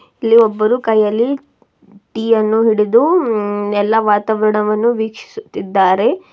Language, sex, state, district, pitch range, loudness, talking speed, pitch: Kannada, female, Karnataka, Bidar, 210-235 Hz, -14 LUFS, 85 wpm, 220 Hz